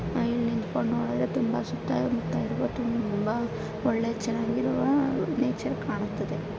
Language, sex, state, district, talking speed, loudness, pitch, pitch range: Kannada, female, Karnataka, Bijapur, 90 wpm, -28 LUFS, 230 Hz, 225-235 Hz